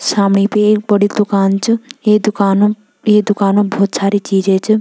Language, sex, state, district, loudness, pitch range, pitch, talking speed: Garhwali, female, Uttarakhand, Tehri Garhwal, -13 LUFS, 200-210 Hz, 205 Hz, 200 wpm